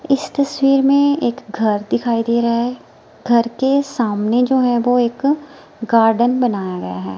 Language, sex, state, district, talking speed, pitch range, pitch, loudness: Hindi, female, Himachal Pradesh, Shimla, 165 wpm, 230-275 Hz, 240 Hz, -17 LUFS